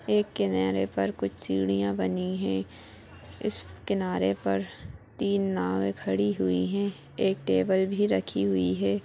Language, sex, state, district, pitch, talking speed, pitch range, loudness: Hindi, female, Chhattisgarh, Bilaspur, 95 Hz, 145 wpm, 95-100 Hz, -28 LUFS